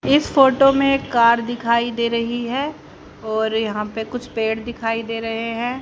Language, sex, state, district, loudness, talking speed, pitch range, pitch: Hindi, female, Haryana, Jhajjar, -19 LUFS, 175 wpm, 225-250 Hz, 235 Hz